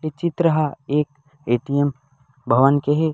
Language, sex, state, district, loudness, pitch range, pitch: Chhattisgarhi, male, Chhattisgarh, Raigarh, -20 LUFS, 135-155 Hz, 145 Hz